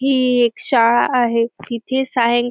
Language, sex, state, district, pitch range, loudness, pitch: Marathi, female, Maharashtra, Dhule, 235-260 Hz, -16 LUFS, 240 Hz